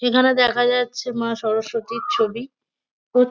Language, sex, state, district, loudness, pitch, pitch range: Bengali, female, West Bengal, North 24 Parganas, -20 LUFS, 245 Hz, 230-250 Hz